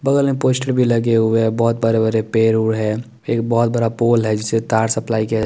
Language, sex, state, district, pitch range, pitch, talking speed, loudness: Hindi, male, Chandigarh, Chandigarh, 110-120 Hz, 115 Hz, 220 wpm, -17 LUFS